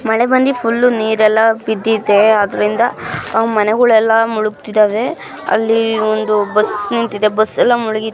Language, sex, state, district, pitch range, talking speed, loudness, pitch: Kannada, female, Karnataka, Mysore, 215-225 Hz, 140 wpm, -14 LUFS, 220 Hz